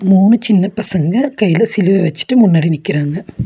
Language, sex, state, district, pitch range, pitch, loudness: Tamil, female, Tamil Nadu, Nilgiris, 170-215 Hz, 195 Hz, -13 LUFS